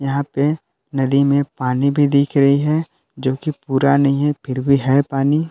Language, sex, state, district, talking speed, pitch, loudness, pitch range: Hindi, male, Jharkhand, Palamu, 195 wpm, 140 Hz, -17 LUFS, 135-145 Hz